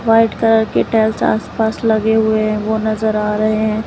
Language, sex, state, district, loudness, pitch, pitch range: Hindi, female, Uttar Pradesh, Lalitpur, -15 LUFS, 220 Hz, 215-220 Hz